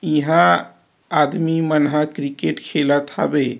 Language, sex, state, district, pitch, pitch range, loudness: Chhattisgarhi, male, Chhattisgarh, Rajnandgaon, 150 Hz, 135-155 Hz, -18 LUFS